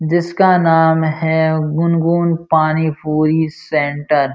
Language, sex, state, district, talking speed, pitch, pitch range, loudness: Hindi, male, Uttar Pradesh, Jalaun, 125 wpm, 160 Hz, 155-165 Hz, -15 LUFS